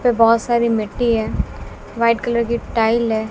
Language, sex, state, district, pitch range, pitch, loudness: Hindi, female, Bihar, West Champaran, 225-235 Hz, 230 Hz, -18 LUFS